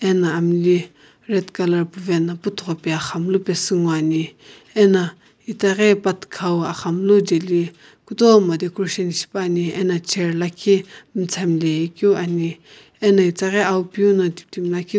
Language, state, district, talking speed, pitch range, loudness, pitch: Sumi, Nagaland, Kohima, 105 wpm, 170-195 Hz, -19 LUFS, 180 Hz